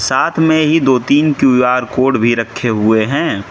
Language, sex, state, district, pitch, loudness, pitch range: Hindi, male, Mizoram, Aizawl, 125 Hz, -13 LUFS, 115-140 Hz